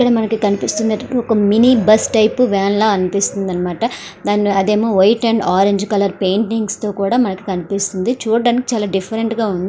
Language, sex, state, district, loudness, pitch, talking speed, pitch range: Telugu, female, Andhra Pradesh, Srikakulam, -15 LUFS, 210 Hz, 155 wpm, 195-225 Hz